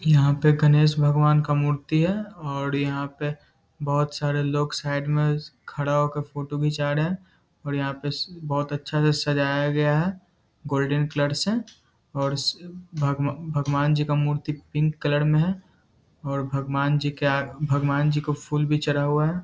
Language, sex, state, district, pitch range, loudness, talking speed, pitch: Hindi, male, Bihar, Muzaffarpur, 145-150 Hz, -24 LUFS, 175 wpm, 145 Hz